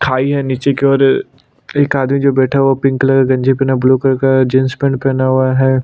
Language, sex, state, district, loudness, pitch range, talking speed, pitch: Hindi, male, Chhattisgarh, Sukma, -13 LUFS, 130-135 Hz, 255 wpm, 135 Hz